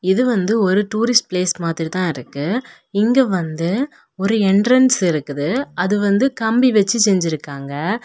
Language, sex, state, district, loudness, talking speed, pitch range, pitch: Tamil, female, Tamil Nadu, Kanyakumari, -17 LUFS, 135 wpm, 170-225 Hz, 195 Hz